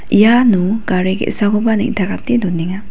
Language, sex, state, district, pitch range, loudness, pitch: Garo, female, Meghalaya, West Garo Hills, 190-225 Hz, -14 LUFS, 210 Hz